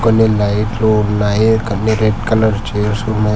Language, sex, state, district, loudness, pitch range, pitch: Telugu, male, Telangana, Hyderabad, -14 LUFS, 105-110 Hz, 110 Hz